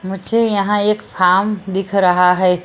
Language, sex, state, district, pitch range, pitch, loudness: Hindi, female, Maharashtra, Mumbai Suburban, 180-205 Hz, 195 Hz, -15 LUFS